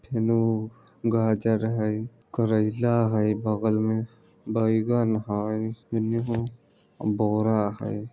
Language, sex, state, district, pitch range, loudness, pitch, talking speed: Maithili, male, Bihar, Vaishali, 110-115 Hz, -26 LUFS, 110 Hz, 90 wpm